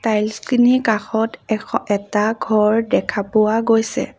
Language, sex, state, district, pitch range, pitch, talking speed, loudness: Assamese, female, Assam, Sonitpur, 210-230 Hz, 220 Hz, 130 wpm, -18 LUFS